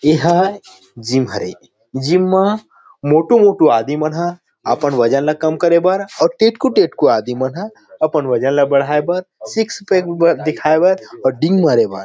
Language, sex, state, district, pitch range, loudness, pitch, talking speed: Chhattisgarhi, male, Chhattisgarh, Rajnandgaon, 140-190 Hz, -15 LUFS, 160 Hz, 175 wpm